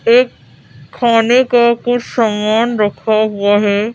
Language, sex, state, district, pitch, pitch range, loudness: Hindi, female, Madhya Pradesh, Bhopal, 225 Hz, 210-240 Hz, -13 LUFS